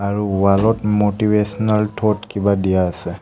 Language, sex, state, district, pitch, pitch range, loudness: Assamese, male, Assam, Kamrup Metropolitan, 105 Hz, 100-105 Hz, -17 LUFS